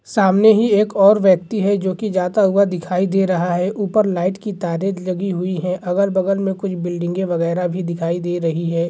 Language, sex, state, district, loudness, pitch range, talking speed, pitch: Hindi, male, Bihar, Gaya, -18 LUFS, 175-200 Hz, 210 wpm, 185 Hz